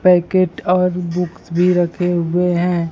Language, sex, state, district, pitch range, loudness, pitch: Hindi, male, Bihar, Kaimur, 175-180 Hz, -17 LUFS, 180 Hz